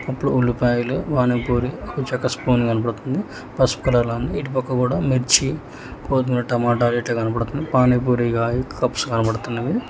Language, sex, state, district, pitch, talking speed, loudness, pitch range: Telugu, male, Telangana, Hyderabad, 125 Hz, 135 wpm, -20 LUFS, 120-130 Hz